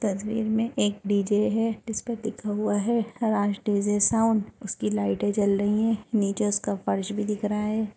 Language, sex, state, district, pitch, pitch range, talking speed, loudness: Hindi, female, Uttar Pradesh, Etah, 210 Hz, 205-220 Hz, 180 wpm, -26 LUFS